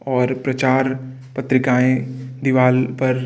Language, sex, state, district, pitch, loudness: Hindi, male, Uttar Pradesh, Varanasi, 130 Hz, -18 LUFS